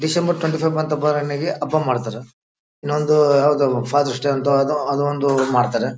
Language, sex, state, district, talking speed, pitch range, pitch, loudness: Kannada, male, Karnataka, Bellary, 140 wpm, 135-150 Hz, 145 Hz, -19 LUFS